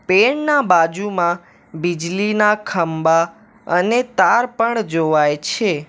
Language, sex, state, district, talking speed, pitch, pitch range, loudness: Gujarati, male, Gujarat, Valsad, 100 wpm, 185 Hz, 165-220 Hz, -17 LUFS